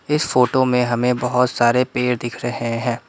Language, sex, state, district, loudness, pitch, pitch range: Hindi, male, Assam, Kamrup Metropolitan, -19 LUFS, 125 Hz, 120-125 Hz